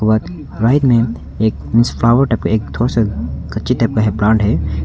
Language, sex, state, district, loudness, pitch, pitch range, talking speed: Hindi, male, Arunachal Pradesh, Longding, -15 LUFS, 110 Hz, 100-115 Hz, 210 wpm